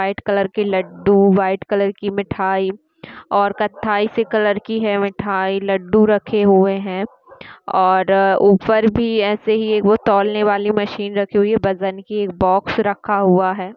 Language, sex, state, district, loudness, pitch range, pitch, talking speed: Hindi, female, Uttar Pradesh, Hamirpur, -17 LUFS, 195-210 Hz, 200 Hz, 165 wpm